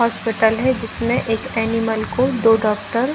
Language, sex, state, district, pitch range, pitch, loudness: Hindi, female, Bihar, Kishanganj, 225-240 Hz, 225 Hz, -19 LUFS